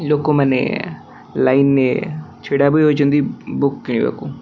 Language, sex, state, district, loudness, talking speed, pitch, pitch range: Odia, male, Odisha, Khordha, -17 LUFS, 95 wpm, 140 Hz, 140-150 Hz